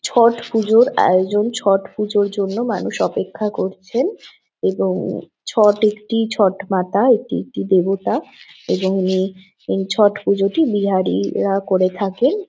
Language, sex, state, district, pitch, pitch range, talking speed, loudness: Bengali, female, West Bengal, Jhargram, 205 Hz, 190-225 Hz, 125 wpm, -18 LUFS